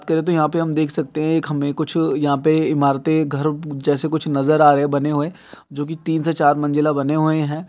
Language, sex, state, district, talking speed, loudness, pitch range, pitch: Maithili, male, Bihar, Samastipur, 225 wpm, -19 LUFS, 145-160 Hz, 155 Hz